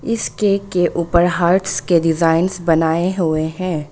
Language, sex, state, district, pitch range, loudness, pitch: Hindi, female, Arunachal Pradesh, Longding, 165-185 Hz, -17 LUFS, 175 Hz